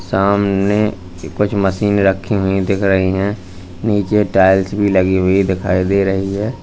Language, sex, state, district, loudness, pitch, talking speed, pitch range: Hindi, male, Uttar Pradesh, Lalitpur, -15 LUFS, 95 Hz, 155 wpm, 95-100 Hz